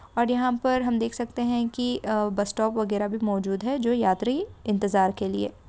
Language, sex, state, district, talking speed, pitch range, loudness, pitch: Hindi, female, Andhra Pradesh, Guntur, 200 wpm, 205-245 Hz, -26 LUFS, 220 Hz